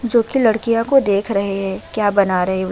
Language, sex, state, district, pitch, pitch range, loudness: Hindi, female, Uttar Pradesh, Budaun, 205 Hz, 195-230 Hz, -17 LUFS